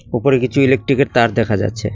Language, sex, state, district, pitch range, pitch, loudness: Bengali, male, West Bengal, Cooch Behar, 115-135 Hz, 120 Hz, -15 LUFS